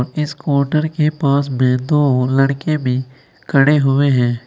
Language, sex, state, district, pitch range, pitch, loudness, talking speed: Hindi, male, Uttar Pradesh, Saharanpur, 130-150 Hz, 140 Hz, -16 LUFS, 145 wpm